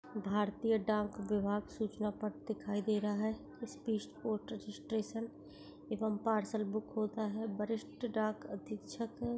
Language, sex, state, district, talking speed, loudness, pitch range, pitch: Hindi, female, Jharkhand, Jamtara, 140 wpm, -38 LUFS, 210-220 Hz, 215 Hz